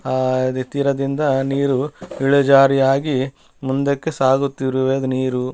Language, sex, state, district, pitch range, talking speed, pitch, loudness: Kannada, male, Karnataka, Bellary, 130-140 Hz, 85 wpm, 135 Hz, -18 LUFS